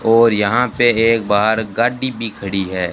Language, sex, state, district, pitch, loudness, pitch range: Hindi, male, Rajasthan, Bikaner, 115 Hz, -16 LUFS, 100-120 Hz